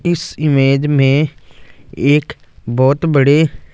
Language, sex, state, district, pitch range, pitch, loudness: Hindi, male, Punjab, Fazilka, 135-150 Hz, 145 Hz, -14 LUFS